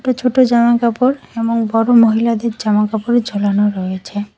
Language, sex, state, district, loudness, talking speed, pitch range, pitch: Bengali, female, West Bengal, Cooch Behar, -15 LUFS, 125 wpm, 210-240 Hz, 230 Hz